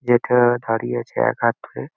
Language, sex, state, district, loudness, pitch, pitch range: Bengali, male, West Bengal, Kolkata, -19 LUFS, 120 Hz, 115-120 Hz